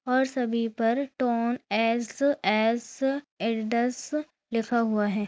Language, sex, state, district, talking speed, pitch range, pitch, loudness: Hindi, female, Maharashtra, Nagpur, 100 wpm, 225-265 Hz, 235 Hz, -27 LUFS